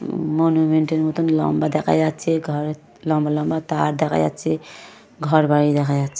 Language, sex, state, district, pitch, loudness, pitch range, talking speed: Bengali, male, West Bengal, Paschim Medinipur, 155 Hz, -20 LUFS, 145-160 Hz, 145 wpm